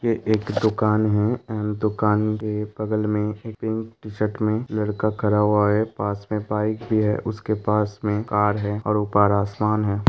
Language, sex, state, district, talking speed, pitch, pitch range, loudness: Hindi, male, Uttar Pradesh, Hamirpur, 185 wpm, 105 Hz, 105-110 Hz, -23 LUFS